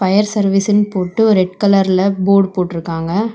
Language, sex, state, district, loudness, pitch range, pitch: Tamil, female, Tamil Nadu, Chennai, -14 LUFS, 185-205 Hz, 195 Hz